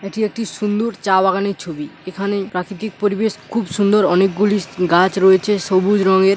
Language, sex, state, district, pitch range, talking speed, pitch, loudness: Bengali, male, West Bengal, Paschim Medinipur, 190-205 Hz, 160 wpm, 195 Hz, -17 LUFS